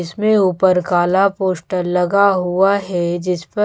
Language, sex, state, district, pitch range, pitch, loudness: Hindi, female, Bihar, Patna, 180-195 Hz, 185 Hz, -16 LUFS